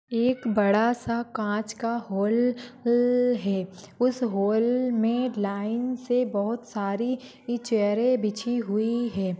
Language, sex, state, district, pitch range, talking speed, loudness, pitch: Hindi, female, Maharashtra, Nagpur, 210-245 Hz, 120 wpm, -26 LUFS, 235 Hz